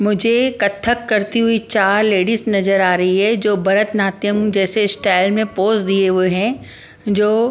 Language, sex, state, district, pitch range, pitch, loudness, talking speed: Hindi, female, Punjab, Pathankot, 195-220 Hz, 205 Hz, -16 LUFS, 175 wpm